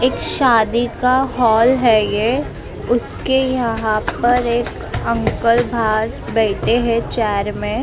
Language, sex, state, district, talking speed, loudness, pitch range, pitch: Hindi, female, Maharashtra, Mumbai Suburban, 120 wpm, -17 LUFS, 225-250 Hz, 235 Hz